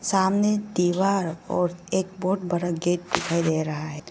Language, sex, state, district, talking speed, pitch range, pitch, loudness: Hindi, female, Arunachal Pradesh, Lower Dibang Valley, 160 wpm, 170-190 Hz, 180 Hz, -25 LUFS